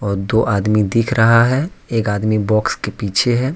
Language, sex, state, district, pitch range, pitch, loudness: Hindi, male, Jharkhand, Deoghar, 105-115 Hz, 110 Hz, -16 LUFS